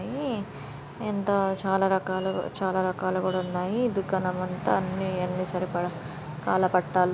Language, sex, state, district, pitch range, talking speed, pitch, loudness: Telugu, female, Andhra Pradesh, Srikakulam, 180-190 Hz, 120 wpm, 185 Hz, -28 LUFS